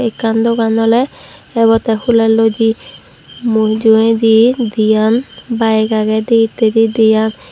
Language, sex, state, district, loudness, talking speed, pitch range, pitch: Chakma, female, Tripura, Dhalai, -12 LUFS, 90 wpm, 220-230 Hz, 225 Hz